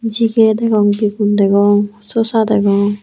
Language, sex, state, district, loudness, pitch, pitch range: Chakma, female, Tripura, Unakoti, -14 LUFS, 210 Hz, 205-225 Hz